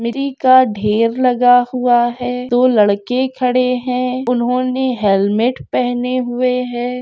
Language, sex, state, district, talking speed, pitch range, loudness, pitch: Hindi, female, Rajasthan, Churu, 130 wpm, 240-255 Hz, -15 LUFS, 250 Hz